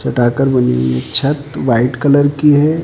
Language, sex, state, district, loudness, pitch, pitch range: Hindi, male, Uttar Pradesh, Lucknow, -13 LUFS, 135 Hz, 120-145 Hz